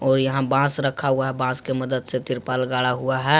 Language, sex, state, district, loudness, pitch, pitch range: Hindi, male, Jharkhand, Ranchi, -22 LUFS, 130 Hz, 130-135 Hz